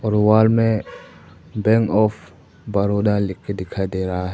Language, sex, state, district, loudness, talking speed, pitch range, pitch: Hindi, male, Arunachal Pradesh, Papum Pare, -19 LUFS, 150 wpm, 95-110 Hz, 105 Hz